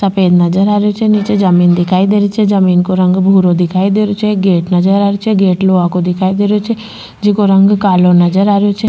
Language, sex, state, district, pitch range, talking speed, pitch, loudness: Rajasthani, female, Rajasthan, Churu, 185-205 Hz, 265 wpm, 195 Hz, -11 LUFS